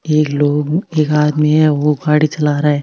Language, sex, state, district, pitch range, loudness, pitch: Marwari, female, Rajasthan, Nagaur, 150-155 Hz, -14 LUFS, 150 Hz